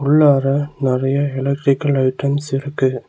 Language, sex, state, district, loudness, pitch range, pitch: Tamil, male, Tamil Nadu, Nilgiris, -17 LUFS, 135-145 Hz, 140 Hz